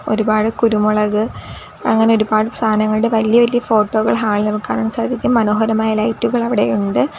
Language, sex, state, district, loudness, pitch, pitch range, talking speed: Malayalam, female, Kerala, Kollam, -16 LUFS, 220 Hz, 215-230 Hz, 135 wpm